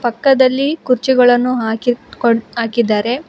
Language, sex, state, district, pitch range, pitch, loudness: Kannada, female, Karnataka, Bangalore, 235-260 Hz, 245 Hz, -14 LUFS